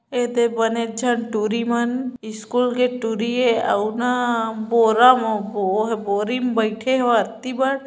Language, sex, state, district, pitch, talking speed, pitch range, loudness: Chhattisgarhi, female, Chhattisgarh, Bilaspur, 235 Hz, 160 wpm, 220-245 Hz, -20 LUFS